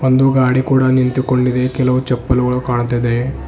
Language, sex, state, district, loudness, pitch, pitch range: Kannada, male, Karnataka, Bidar, -15 LUFS, 125 Hz, 125-130 Hz